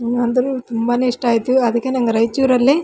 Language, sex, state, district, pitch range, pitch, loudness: Kannada, female, Karnataka, Raichur, 235-255 Hz, 245 Hz, -17 LUFS